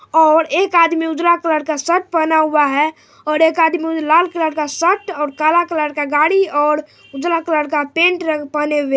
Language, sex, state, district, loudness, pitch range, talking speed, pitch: Hindi, female, Bihar, Supaul, -15 LUFS, 300-335 Hz, 205 wpm, 315 Hz